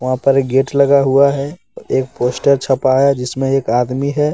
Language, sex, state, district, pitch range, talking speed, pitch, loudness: Hindi, male, Jharkhand, Deoghar, 130-140 Hz, 205 wpm, 135 Hz, -15 LUFS